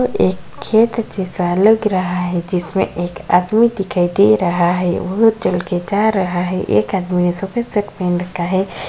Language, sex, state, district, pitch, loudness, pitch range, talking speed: Kumaoni, female, Uttarakhand, Tehri Garhwal, 185 Hz, -16 LUFS, 175-210 Hz, 170 wpm